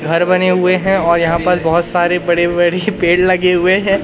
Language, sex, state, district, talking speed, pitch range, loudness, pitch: Hindi, male, Madhya Pradesh, Katni, 220 wpm, 170-185 Hz, -13 LUFS, 180 Hz